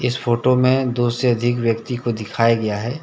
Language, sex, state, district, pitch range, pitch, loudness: Hindi, male, Jharkhand, Deoghar, 115-125 Hz, 120 Hz, -19 LUFS